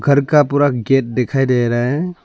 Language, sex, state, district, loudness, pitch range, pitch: Hindi, male, Arunachal Pradesh, Lower Dibang Valley, -15 LUFS, 125-145 Hz, 135 Hz